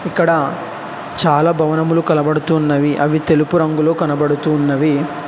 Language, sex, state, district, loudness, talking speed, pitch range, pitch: Telugu, male, Telangana, Hyderabad, -15 LUFS, 90 wpm, 145-165 Hz, 155 Hz